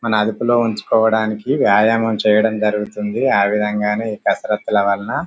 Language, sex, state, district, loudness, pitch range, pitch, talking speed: Telugu, male, Telangana, Karimnagar, -17 LUFS, 105-115 Hz, 110 Hz, 125 wpm